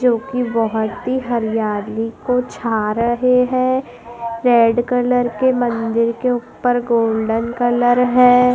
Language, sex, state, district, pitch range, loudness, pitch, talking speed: Hindi, female, Madhya Pradesh, Dhar, 230-250 Hz, -17 LUFS, 240 Hz, 125 wpm